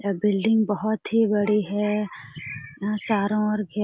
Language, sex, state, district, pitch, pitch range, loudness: Hindi, female, Jharkhand, Sahebganj, 210 Hz, 200-215 Hz, -24 LUFS